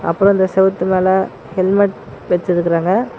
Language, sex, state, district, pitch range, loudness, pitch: Tamil, male, Tamil Nadu, Namakkal, 180-195 Hz, -15 LUFS, 190 Hz